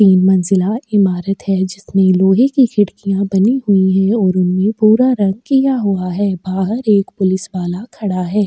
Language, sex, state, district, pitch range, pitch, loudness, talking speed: Hindi, female, Bihar, Kishanganj, 190-215 Hz, 195 Hz, -14 LUFS, 170 wpm